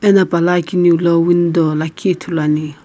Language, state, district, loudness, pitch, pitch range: Sumi, Nagaland, Kohima, -14 LUFS, 170 Hz, 160-175 Hz